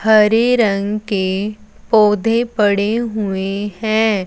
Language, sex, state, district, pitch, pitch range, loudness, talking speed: Hindi, female, Punjab, Fazilka, 210 Hz, 200-220 Hz, -16 LUFS, 100 wpm